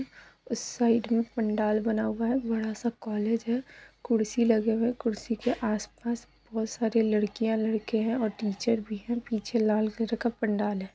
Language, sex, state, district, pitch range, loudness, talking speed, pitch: Kumaoni, female, Uttarakhand, Tehri Garhwal, 215-235 Hz, -29 LUFS, 175 wpm, 225 Hz